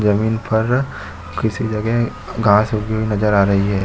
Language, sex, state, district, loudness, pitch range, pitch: Hindi, male, Chhattisgarh, Bilaspur, -18 LUFS, 100-110 Hz, 110 Hz